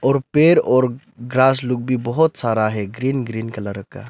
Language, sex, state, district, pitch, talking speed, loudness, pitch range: Hindi, male, Arunachal Pradesh, Lower Dibang Valley, 125 Hz, 190 wpm, -18 LUFS, 115-135 Hz